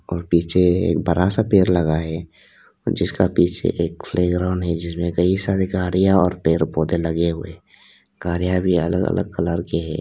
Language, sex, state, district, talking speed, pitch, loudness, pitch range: Hindi, male, Arunachal Pradesh, Lower Dibang Valley, 180 wpm, 85 Hz, -20 LUFS, 85-90 Hz